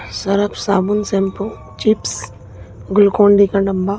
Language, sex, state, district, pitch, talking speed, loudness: Hindi, female, Bihar, Katihar, 195 Hz, 120 wpm, -16 LUFS